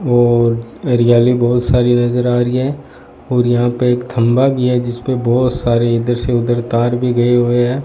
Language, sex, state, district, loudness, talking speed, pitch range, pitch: Hindi, male, Rajasthan, Bikaner, -14 LUFS, 205 wpm, 120-125 Hz, 120 Hz